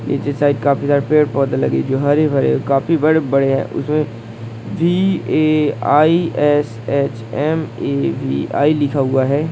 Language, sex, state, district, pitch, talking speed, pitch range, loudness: Hindi, male, Andhra Pradesh, Srikakulam, 140 Hz, 30 wpm, 115-150 Hz, -16 LUFS